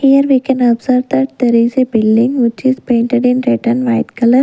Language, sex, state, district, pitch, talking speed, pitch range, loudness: English, female, Punjab, Kapurthala, 245 Hz, 230 wpm, 230-260 Hz, -13 LUFS